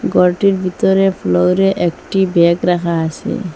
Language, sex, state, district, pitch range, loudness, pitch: Bengali, female, Assam, Hailakandi, 170-190 Hz, -14 LUFS, 180 Hz